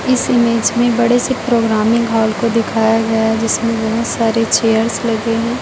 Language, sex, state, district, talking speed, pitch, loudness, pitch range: Hindi, female, Chhattisgarh, Raipur, 180 wpm, 230 Hz, -14 LUFS, 225-235 Hz